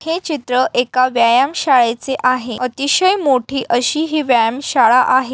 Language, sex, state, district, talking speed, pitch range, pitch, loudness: Marathi, female, Maharashtra, Aurangabad, 145 wpm, 245-285 Hz, 255 Hz, -15 LUFS